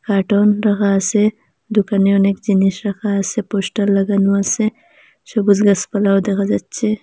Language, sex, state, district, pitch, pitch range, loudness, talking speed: Bengali, female, Assam, Hailakandi, 200 Hz, 195-210 Hz, -16 LUFS, 130 wpm